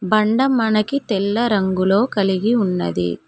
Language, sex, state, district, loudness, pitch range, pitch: Telugu, female, Telangana, Mahabubabad, -18 LUFS, 190-230 Hz, 210 Hz